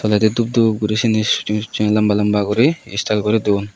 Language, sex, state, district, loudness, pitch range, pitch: Chakma, male, Tripura, West Tripura, -17 LUFS, 105-110 Hz, 105 Hz